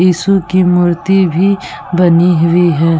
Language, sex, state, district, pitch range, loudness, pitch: Hindi, female, Bihar, Vaishali, 170-185 Hz, -11 LUFS, 180 Hz